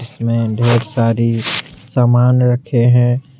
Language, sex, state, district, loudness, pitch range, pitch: Hindi, male, Jharkhand, Deoghar, -14 LUFS, 115-125 Hz, 120 Hz